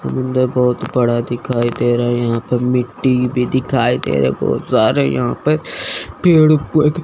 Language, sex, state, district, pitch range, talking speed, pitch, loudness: Hindi, male, Chandigarh, Chandigarh, 120-130 Hz, 180 wpm, 125 Hz, -16 LUFS